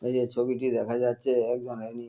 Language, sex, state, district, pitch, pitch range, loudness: Bengali, male, West Bengal, North 24 Parganas, 120 Hz, 120-125 Hz, -28 LUFS